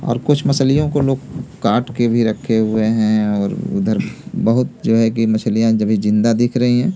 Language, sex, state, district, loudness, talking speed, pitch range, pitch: Hindi, male, Delhi, New Delhi, -16 LUFS, 200 wpm, 110-125 Hz, 115 Hz